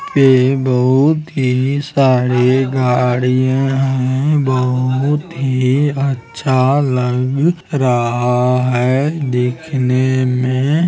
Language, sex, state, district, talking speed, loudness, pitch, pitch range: Hindi, male, Bihar, Araria, 75 wpm, -15 LUFS, 130 Hz, 125-140 Hz